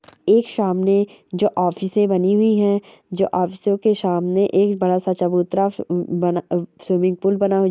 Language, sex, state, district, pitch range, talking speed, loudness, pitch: Hindi, female, West Bengal, Purulia, 180-200 Hz, 150 wpm, -19 LUFS, 190 Hz